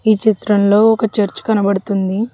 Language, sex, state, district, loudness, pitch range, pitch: Telugu, female, Telangana, Hyderabad, -15 LUFS, 200-220 Hz, 210 Hz